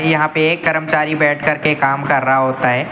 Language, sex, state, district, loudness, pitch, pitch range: Hindi, male, Uttar Pradesh, Lucknow, -15 LUFS, 150 Hz, 135-155 Hz